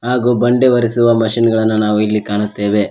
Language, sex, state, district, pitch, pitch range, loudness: Kannada, male, Karnataka, Koppal, 110 Hz, 105-120 Hz, -14 LUFS